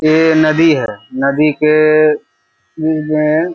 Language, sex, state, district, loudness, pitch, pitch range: Hindi, male, Bihar, Purnia, -13 LUFS, 155 Hz, 140-155 Hz